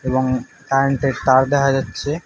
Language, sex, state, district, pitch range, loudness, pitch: Bengali, male, West Bengal, Alipurduar, 130-140 Hz, -18 LUFS, 135 Hz